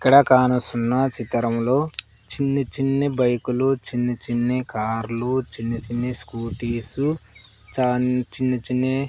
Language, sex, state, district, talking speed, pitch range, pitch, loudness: Telugu, male, Andhra Pradesh, Sri Satya Sai, 100 wpm, 115-130 Hz, 125 Hz, -23 LUFS